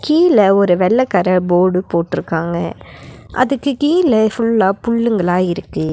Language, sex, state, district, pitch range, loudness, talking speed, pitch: Tamil, female, Tamil Nadu, Nilgiris, 180-240 Hz, -15 LUFS, 110 wpm, 195 Hz